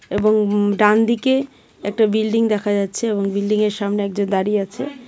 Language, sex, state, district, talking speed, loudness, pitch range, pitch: Bengali, female, Tripura, West Tripura, 165 wpm, -18 LUFS, 205-225 Hz, 210 Hz